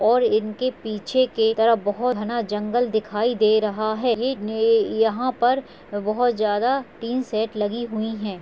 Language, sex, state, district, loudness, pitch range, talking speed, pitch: Hindi, female, Chhattisgarh, Raigarh, -22 LUFS, 215-245 Hz, 150 wpm, 225 Hz